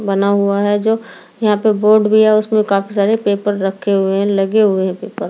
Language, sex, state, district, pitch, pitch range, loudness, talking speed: Hindi, female, Delhi, New Delhi, 205 Hz, 195-215 Hz, -14 LUFS, 215 wpm